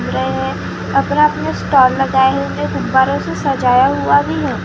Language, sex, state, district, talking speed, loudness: Hindi, female, Maharashtra, Gondia, 140 wpm, -15 LUFS